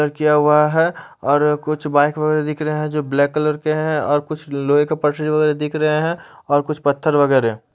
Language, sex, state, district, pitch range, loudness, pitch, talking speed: Hindi, male, Chandigarh, Chandigarh, 145-155 Hz, -18 LUFS, 150 Hz, 210 wpm